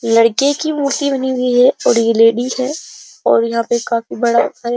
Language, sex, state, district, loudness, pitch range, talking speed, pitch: Hindi, female, Uttar Pradesh, Jyotiba Phule Nagar, -15 LUFS, 230-280 Hz, 200 wpm, 250 Hz